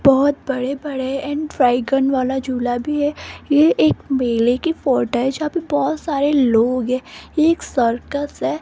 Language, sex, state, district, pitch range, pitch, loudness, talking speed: Hindi, female, Rajasthan, Jaipur, 250-290 Hz, 270 Hz, -19 LUFS, 175 wpm